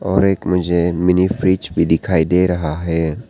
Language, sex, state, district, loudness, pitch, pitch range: Hindi, male, Arunachal Pradesh, Papum Pare, -16 LUFS, 90 Hz, 80-95 Hz